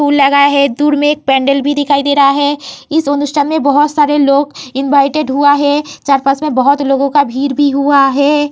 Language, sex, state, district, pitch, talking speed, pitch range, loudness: Hindi, female, Uttar Pradesh, Varanasi, 285 Hz, 210 wpm, 275-290 Hz, -11 LUFS